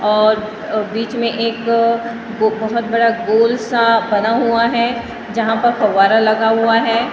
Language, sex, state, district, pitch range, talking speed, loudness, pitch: Hindi, female, Maharashtra, Gondia, 220-235 Hz, 170 wpm, -15 LUFS, 230 Hz